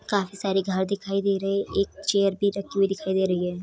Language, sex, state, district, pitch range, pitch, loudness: Hindi, female, Bihar, Sitamarhi, 190-200 Hz, 195 Hz, -25 LUFS